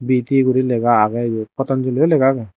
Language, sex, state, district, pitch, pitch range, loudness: Chakma, male, Tripura, Dhalai, 130 Hz, 120-135 Hz, -17 LUFS